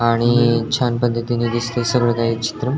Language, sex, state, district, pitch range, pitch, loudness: Marathi, male, Maharashtra, Dhule, 115-120 Hz, 120 Hz, -18 LUFS